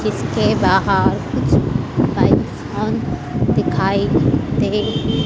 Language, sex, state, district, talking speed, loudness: Hindi, female, Madhya Pradesh, Dhar, 55 wpm, -17 LUFS